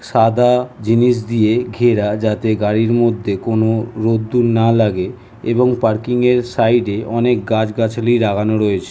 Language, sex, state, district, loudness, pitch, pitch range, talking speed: Bengali, male, West Bengal, North 24 Parganas, -15 LUFS, 115 Hz, 110-120 Hz, 140 wpm